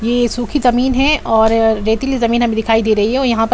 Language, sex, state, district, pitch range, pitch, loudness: Hindi, female, Bihar, Saran, 225-250 Hz, 235 Hz, -14 LUFS